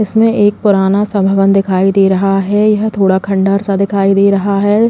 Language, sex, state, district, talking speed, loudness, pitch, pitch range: Hindi, female, Uttar Pradesh, Jalaun, 210 wpm, -11 LUFS, 195 Hz, 195-205 Hz